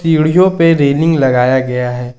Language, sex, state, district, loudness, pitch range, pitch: Hindi, male, Jharkhand, Ranchi, -11 LUFS, 125-165 Hz, 140 Hz